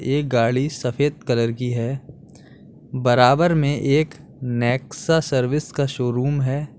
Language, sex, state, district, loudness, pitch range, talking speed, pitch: Hindi, male, Uttar Pradesh, Lalitpur, -20 LUFS, 125-145 Hz, 125 wpm, 135 Hz